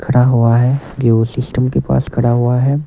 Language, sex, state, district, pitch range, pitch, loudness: Hindi, male, Himachal Pradesh, Shimla, 120-130 Hz, 125 Hz, -14 LUFS